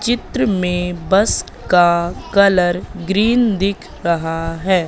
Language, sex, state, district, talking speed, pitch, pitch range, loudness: Hindi, female, Madhya Pradesh, Katni, 110 wpm, 180 Hz, 170-200 Hz, -16 LUFS